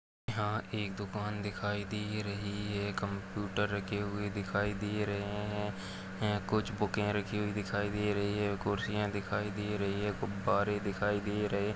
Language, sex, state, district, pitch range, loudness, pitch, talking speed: Hindi, male, Chhattisgarh, Jashpur, 100-105 Hz, -35 LUFS, 105 Hz, 165 wpm